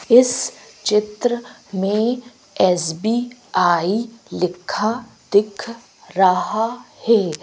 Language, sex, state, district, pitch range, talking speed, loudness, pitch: Hindi, female, Madhya Pradesh, Bhopal, 185-240 Hz, 65 wpm, -20 LUFS, 215 Hz